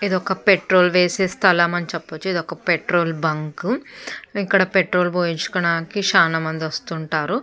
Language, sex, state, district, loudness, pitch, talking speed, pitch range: Telugu, female, Andhra Pradesh, Chittoor, -19 LUFS, 180 Hz, 130 wpm, 165-190 Hz